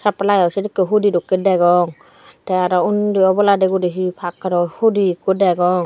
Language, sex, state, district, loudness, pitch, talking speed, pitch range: Chakma, female, Tripura, Dhalai, -16 LUFS, 185 Hz, 135 wpm, 180-200 Hz